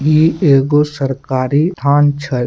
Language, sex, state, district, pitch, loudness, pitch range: Maithili, male, Bihar, Samastipur, 145 Hz, -14 LUFS, 135-150 Hz